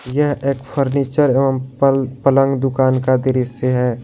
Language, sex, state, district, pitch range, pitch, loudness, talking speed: Hindi, male, Jharkhand, Garhwa, 130-135 Hz, 135 Hz, -17 LUFS, 135 wpm